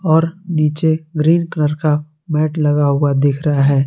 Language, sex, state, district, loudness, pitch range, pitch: Hindi, male, Jharkhand, Garhwa, -16 LUFS, 145-160 Hz, 150 Hz